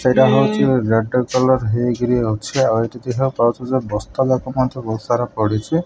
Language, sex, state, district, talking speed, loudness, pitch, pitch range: Odia, male, Odisha, Malkangiri, 115 wpm, -18 LUFS, 120 Hz, 110-130 Hz